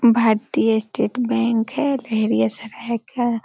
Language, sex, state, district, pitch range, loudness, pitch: Hindi, female, Bihar, Darbhanga, 220-240 Hz, -20 LUFS, 230 Hz